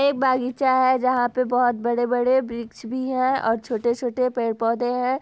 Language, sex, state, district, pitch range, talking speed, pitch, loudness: Hindi, female, Bihar, Gopalganj, 235-260 Hz, 185 wpm, 250 Hz, -22 LUFS